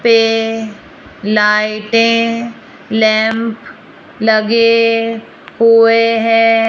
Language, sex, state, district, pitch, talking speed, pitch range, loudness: Hindi, female, Rajasthan, Jaipur, 225 Hz, 55 wpm, 220-230 Hz, -12 LUFS